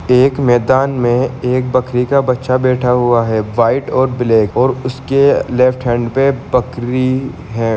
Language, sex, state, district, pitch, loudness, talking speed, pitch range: Hindi, male, Bihar, Sitamarhi, 125 Hz, -14 LUFS, 155 wpm, 120-130 Hz